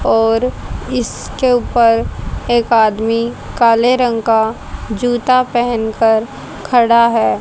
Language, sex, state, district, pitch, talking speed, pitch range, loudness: Hindi, female, Haryana, Jhajjar, 235 Hz, 95 wpm, 225-245 Hz, -14 LUFS